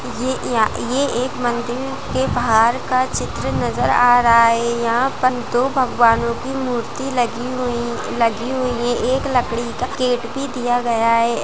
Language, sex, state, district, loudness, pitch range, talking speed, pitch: Hindi, female, Rajasthan, Churu, -18 LUFS, 235-255 Hz, 170 wpm, 245 Hz